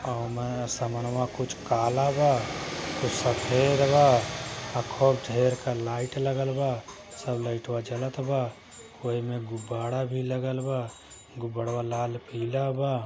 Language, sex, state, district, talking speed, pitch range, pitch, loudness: Hindi, male, Uttar Pradesh, Gorakhpur, 140 wpm, 120-130 Hz, 125 Hz, -28 LUFS